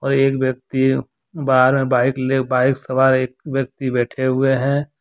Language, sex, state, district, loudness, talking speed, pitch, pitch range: Hindi, male, Jharkhand, Deoghar, -18 LUFS, 170 wpm, 130 Hz, 130-135 Hz